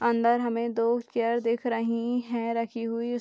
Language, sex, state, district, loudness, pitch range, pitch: Hindi, female, Bihar, Darbhanga, -27 LUFS, 230-235 Hz, 235 Hz